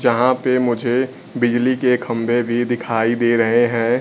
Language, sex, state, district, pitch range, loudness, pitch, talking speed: Hindi, male, Bihar, Kaimur, 120-125 Hz, -18 LUFS, 120 Hz, 165 wpm